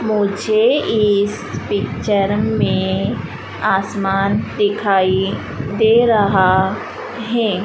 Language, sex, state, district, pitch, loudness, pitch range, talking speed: Hindi, female, Madhya Pradesh, Dhar, 205 Hz, -17 LUFS, 195-220 Hz, 70 wpm